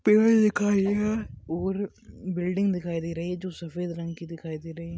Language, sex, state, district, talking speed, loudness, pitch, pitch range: Hindi, male, Maharashtra, Aurangabad, 230 wpm, -27 LUFS, 180 Hz, 170-200 Hz